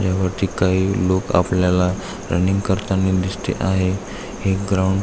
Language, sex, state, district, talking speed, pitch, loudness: Marathi, male, Maharashtra, Aurangabad, 145 wpm, 95 Hz, -20 LUFS